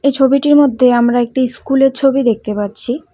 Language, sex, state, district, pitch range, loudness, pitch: Bengali, female, West Bengal, Cooch Behar, 240-275 Hz, -13 LUFS, 260 Hz